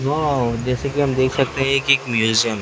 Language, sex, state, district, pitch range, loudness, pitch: Hindi, male, Chhattisgarh, Raipur, 120-140 Hz, -19 LUFS, 135 Hz